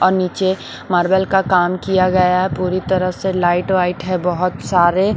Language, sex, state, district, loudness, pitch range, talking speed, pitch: Hindi, female, Bihar, Patna, -17 LUFS, 180-190 Hz, 185 wpm, 185 Hz